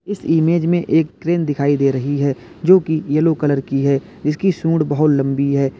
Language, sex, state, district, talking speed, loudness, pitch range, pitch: Hindi, male, Uttar Pradesh, Lalitpur, 205 wpm, -17 LUFS, 140-165 Hz, 150 Hz